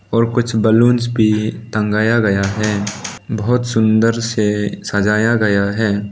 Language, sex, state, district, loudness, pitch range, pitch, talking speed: Hindi, male, Arunachal Pradesh, Lower Dibang Valley, -16 LUFS, 105-115 Hz, 110 Hz, 130 wpm